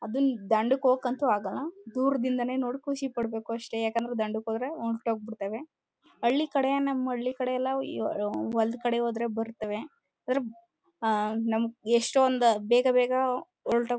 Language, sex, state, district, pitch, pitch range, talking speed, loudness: Kannada, female, Karnataka, Chamarajanagar, 245 Hz, 225-265 Hz, 120 wpm, -28 LUFS